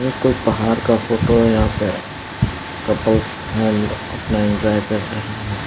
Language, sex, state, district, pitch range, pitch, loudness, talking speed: Hindi, male, Bihar, East Champaran, 105-115 Hz, 110 Hz, -19 LUFS, 160 wpm